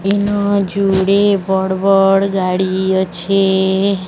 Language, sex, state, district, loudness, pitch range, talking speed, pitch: Odia, female, Odisha, Sambalpur, -14 LUFS, 190-200 Hz, 75 wpm, 195 Hz